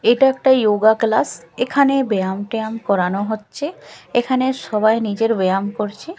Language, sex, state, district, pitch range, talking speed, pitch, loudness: Bengali, female, Chhattisgarh, Raipur, 210-260 Hz, 135 wpm, 220 Hz, -18 LUFS